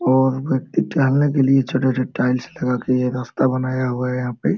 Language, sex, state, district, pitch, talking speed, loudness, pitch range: Hindi, male, Jharkhand, Sahebganj, 130 Hz, 250 wpm, -19 LUFS, 125-135 Hz